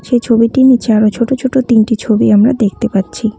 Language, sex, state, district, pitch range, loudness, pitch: Bengali, female, West Bengal, Cooch Behar, 215-245 Hz, -11 LUFS, 230 Hz